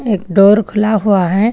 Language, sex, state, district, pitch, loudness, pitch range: Hindi, female, Telangana, Hyderabad, 210 Hz, -12 LUFS, 195-215 Hz